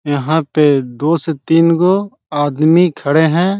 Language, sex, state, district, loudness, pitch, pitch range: Hindi, male, Bihar, Jahanabad, -14 LUFS, 160 Hz, 145-170 Hz